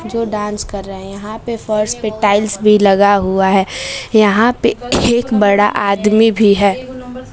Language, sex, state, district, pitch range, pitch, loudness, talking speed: Hindi, female, Bihar, West Champaran, 200-230 Hz, 210 Hz, -13 LUFS, 170 wpm